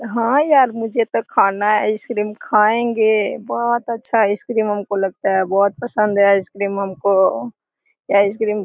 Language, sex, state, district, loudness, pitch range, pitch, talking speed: Hindi, female, Jharkhand, Sahebganj, -17 LUFS, 200-230 Hz, 210 Hz, 150 wpm